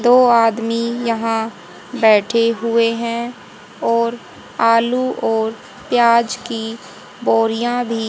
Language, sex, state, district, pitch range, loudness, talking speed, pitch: Hindi, female, Haryana, Jhajjar, 225-240 Hz, -17 LUFS, 95 wpm, 230 Hz